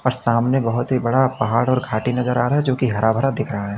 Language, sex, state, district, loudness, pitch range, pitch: Hindi, male, Uttar Pradesh, Lalitpur, -19 LUFS, 115-130 Hz, 125 Hz